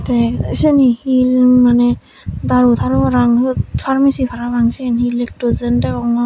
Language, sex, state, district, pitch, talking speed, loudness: Chakma, female, Tripura, Dhalai, 240 Hz, 135 wpm, -14 LUFS